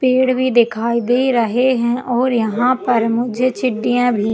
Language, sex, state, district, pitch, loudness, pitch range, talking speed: Hindi, female, Chhattisgarh, Jashpur, 245 Hz, -16 LUFS, 235-255 Hz, 180 wpm